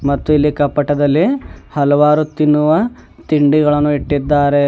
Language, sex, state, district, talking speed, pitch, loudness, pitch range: Kannada, male, Karnataka, Bidar, 90 wpm, 150 Hz, -14 LUFS, 145-150 Hz